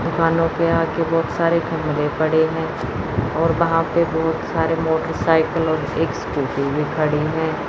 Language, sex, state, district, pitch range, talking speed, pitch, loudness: Hindi, female, Chandigarh, Chandigarh, 155-165 Hz, 155 wpm, 160 Hz, -20 LUFS